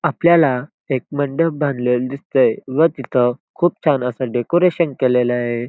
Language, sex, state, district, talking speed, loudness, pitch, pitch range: Marathi, male, Maharashtra, Dhule, 135 wpm, -18 LUFS, 140 Hz, 125-165 Hz